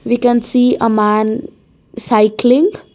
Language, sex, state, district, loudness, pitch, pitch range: English, female, Karnataka, Bangalore, -13 LUFS, 240 Hz, 215-250 Hz